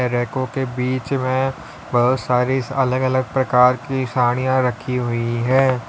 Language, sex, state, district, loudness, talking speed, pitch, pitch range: Hindi, male, Uttar Pradesh, Lalitpur, -19 LUFS, 140 wpm, 130 Hz, 125-130 Hz